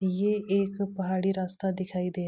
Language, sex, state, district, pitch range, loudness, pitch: Hindi, female, Uttarakhand, Uttarkashi, 185-195 Hz, -29 LUFS, 190 Hz